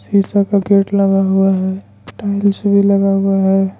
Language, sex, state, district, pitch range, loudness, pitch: Hindi, male, Jharkhand, Ranchi, 195-200 Hz, -14 LUFS, 195 Hz